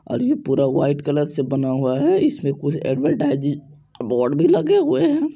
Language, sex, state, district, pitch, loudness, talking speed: Maithili, male, Bihar, Supaul, 145 Hz, -19 LUFS, 210 wpm